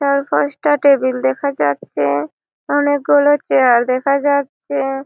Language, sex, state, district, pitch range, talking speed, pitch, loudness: Bengali, female, West Bengal, Malda, 255-285 Hz, 130 wpm, 275 Hz, -16 LUFS